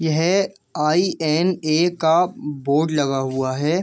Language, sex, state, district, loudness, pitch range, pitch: Hindi, male, Jharkhand, Jamtara, -20 LUFS, 145-175 Hz, 155 Hz